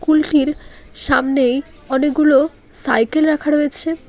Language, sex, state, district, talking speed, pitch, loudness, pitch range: Bengali, female, West Bengal, Alipurduar, 90 wpm, 295 Hz, -16 LUFS, 275-310 Hz